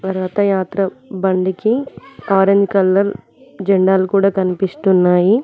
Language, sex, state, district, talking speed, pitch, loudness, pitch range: Telugu, female, Telangana, Mahabubabad, 75 wpm, 195 Hz, -16 LUFS, 190-200 Hz